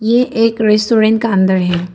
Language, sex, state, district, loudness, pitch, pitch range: Hindi, female, Arunachal Pradesh, Papum Pare, -13 LUFS, 220 Hz, 190-230 Hz